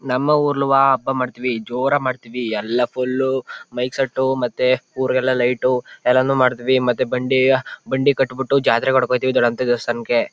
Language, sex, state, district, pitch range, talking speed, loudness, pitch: Kannada, male, Karnataka, Chamarajanagar, 125-135 Hz, 140 wpm, -19 LUFS, 130 Hz